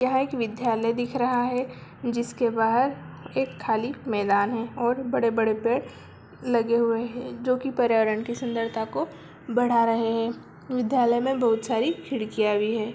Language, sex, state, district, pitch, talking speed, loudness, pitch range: Hindi, female, Bihar, Begusarai, 235 Hz, 155 wpm, -25 LUFS, 225-250 Hz